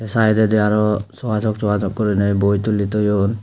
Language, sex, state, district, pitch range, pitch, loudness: Chakma, male, Tripura, Unakoti, 100-110 Hz, 105 Hz, -18 LUFS